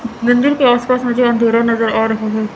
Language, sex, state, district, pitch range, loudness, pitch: Hindi, female, Chandigarh, Chandigarh, 225-245 Hz, -14 LUFS, 235 Hz